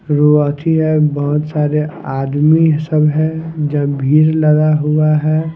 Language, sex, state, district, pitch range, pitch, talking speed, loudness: Hindi, male, Himachal Pradesh, Shimla, 150-155 Hz, 150 Hz, 130 wpm, -14 LUFS